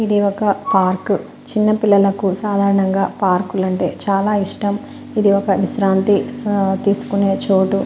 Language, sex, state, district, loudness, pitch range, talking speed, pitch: Telugu, female, Telangana, Nalgonda, -17 LUFS, 195-210 Hz, 115 wpm, 200 Hz